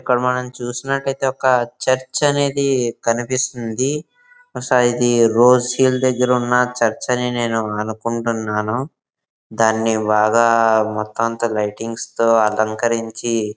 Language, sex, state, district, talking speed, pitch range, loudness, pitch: Telugu, male, Andhra Pradesh, Visakhapatnam, 95 wpm, 115-130 Hz, -18 LUFS, 120 Hz